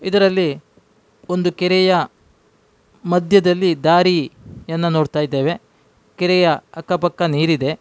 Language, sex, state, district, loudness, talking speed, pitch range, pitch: Kannada, male, Karnataka, Dakshina Kannada, -17 LUFS, 75 wpm, 155-180 Hz, 175 Hz